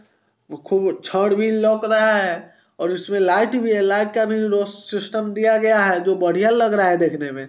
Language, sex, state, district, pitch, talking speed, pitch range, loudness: Hindi, male, Bihar, Sitamarhi, 210 Hz, 200 wpm, 190-220 Hz, -18 LUFS